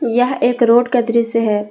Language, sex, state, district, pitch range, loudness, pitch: Hindi, female, Jharkhand, Ranchi, 230-245 Hz, -15 LUFS, 235 Hz